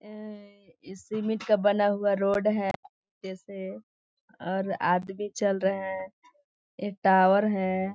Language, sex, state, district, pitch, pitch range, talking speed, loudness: Hindi, female, Chhattisgarh, Sarguja, 200 Hz, 190-210 Hz, 130 wpm, -27 LUFS